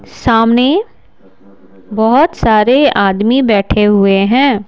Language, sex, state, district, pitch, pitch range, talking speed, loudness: Hindi, female, Bihar, Patna, 220 Hz, 195-255 Hz, 90 wpm, -11 LUFS